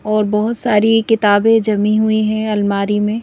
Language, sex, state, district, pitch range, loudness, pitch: Hindi, female, Madhya Pradesh, Bhopal, 210-225 Hz, -14 LUFS, 215 Hz